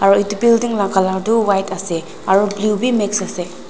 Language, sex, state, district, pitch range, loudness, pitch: Nagamese, female, Nagaland, Dimapur, 190-215 Hz, -17 LUFS, 200 Hz